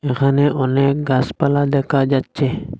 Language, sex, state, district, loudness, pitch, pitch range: Bengali, male, Assam, Hailakandi, -17 LUFS, 140 Hz, 135-145 Hz